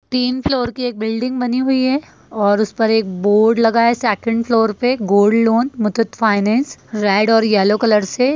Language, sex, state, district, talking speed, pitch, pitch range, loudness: Hindi, female, Bihar, Saran, 195 wpm, 225 Hz, 210-250 Hz, -16 LUFS